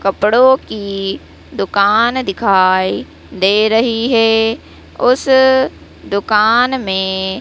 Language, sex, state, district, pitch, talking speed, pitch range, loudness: Hindi, female, Madhya Pradesh, Dhar, 215 Hz, 80 wpm, 195-245 Hz, -13 LUFS